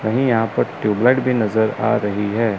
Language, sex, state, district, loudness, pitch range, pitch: Hindi, male, Chandigarh, Chandigarh, -18 LUFS, 105-120 Hz, 110 Hz